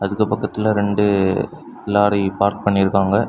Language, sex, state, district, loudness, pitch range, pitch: Tamil, male, Tamil Nadu, Kanyakumari, -18 LUFS, 100-105 Hz, 100 Hz